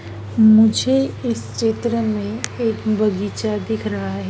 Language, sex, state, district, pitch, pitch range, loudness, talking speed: Hindi, female, Madhya Pradesh, Dhar, 215 Hz, 205-225 Hz, -19 LUFS, 125 wpm